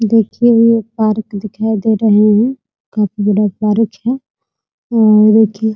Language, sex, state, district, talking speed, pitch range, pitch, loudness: Hindi, female, Bihar, Muzaffarpur, 145 wpm, 210-225 Hz, 220 Hz, -13 LUFS